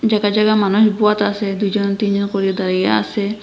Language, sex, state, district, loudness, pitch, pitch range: Bengali, female, Assam, Hailakandi, -16 LUFS, 205 Hz, 200-210 Hz